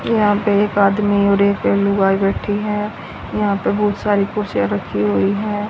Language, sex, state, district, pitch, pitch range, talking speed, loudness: Hindi, female, Haryana, Rohtak, 205 Hz, 195-210 Hz, 190 wpm, -17 LUFS